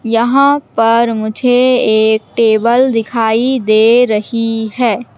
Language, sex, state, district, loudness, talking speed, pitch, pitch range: Hindi, female, Madhya Pradesh, Katni, -12 LUFS, 105 wpm, 230 Hz, 220-245 Hz